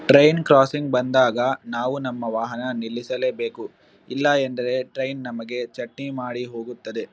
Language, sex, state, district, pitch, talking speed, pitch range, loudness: Kannada, male, Karnataka, Bellary, 125 Hz, 120 wpm, 120-135 Hz, -22 LUFS